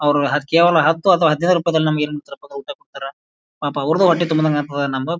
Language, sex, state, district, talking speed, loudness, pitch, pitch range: Kannada, male, Karnataka, Bijapur, 185 wpm, -17 LUFS, 155 Hz, 145-170 Hz